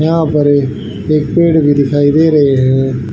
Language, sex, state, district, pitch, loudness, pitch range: Hindi, male, Haryana, Rohtak, 145 Hz, -11 LUFS, 135-155 Hz